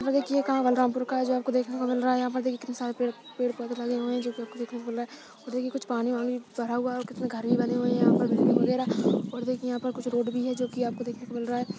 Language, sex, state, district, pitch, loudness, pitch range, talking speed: Hindi, female, Chhattisgarh, Balrampur, 245 Hz, -28 LUFS, 240-255 Hz, 320 wpm